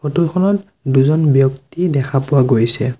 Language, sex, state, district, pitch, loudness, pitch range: Assamese, male, Assam, Sonitpur, 140 Hz, -15 LUFS, 135-170 Hz